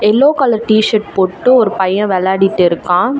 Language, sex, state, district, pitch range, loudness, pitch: Tamil, female, Tamil Nadu, Chennai, 190-230 Hz, -12 LUFS, 210 Hz